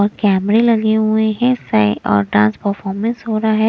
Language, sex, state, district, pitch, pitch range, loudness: Hindi, female, Punjab, Kapurthala, 215 Hz, 195-220 Hz, -15 LUFS